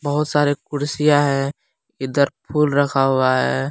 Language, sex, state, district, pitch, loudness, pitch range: Hindi, male, Jharkhand, Palamu, 145 Hz, -19 LUFS, 135-145 Hz